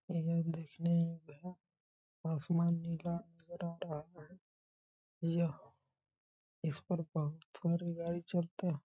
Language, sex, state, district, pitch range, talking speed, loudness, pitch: Hindi, male, Bihar, Muzaffarpur, 165-170 Hz, 55 wpm, -38 LUFS, 170 Hz